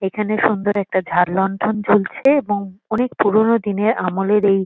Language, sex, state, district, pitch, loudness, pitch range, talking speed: Bengali, female, West Bengal, Kolkata, 205 Hz, -18 LUFS, 195-220 Hz, 140 wpm